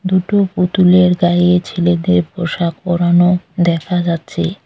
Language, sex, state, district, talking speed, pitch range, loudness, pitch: Bengali, female, West Bengal, Cooch Behar, 105 wpm, 170-180 Hz, -14 LUFS, 175 Hz